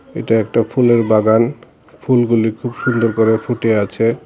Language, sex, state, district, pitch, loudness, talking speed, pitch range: Bengali, male, Tripura, Dhalai, 115 Hz, -15 LUFS, 140 wpm, 110-120 Hz